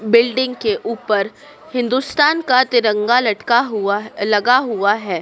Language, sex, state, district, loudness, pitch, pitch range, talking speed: Hindi, female, Madhya Pradesh, Dhar, -17 LUFS, 235 Hz, 210-255 Hz, 140 wpm